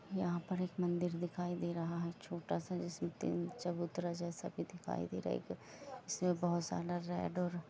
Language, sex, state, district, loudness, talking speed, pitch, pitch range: Hindi, female, Jharkhand, Jamtara, -40 LUFS, 185 wpm, 175 Hz, 170-180 Hz